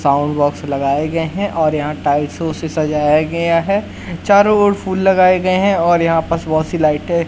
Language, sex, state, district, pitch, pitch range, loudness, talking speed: Hindi, male, Madhya Pradesh, Katni, 165 Hz, 150-185 Hz, -15 LUFS, 205 wpm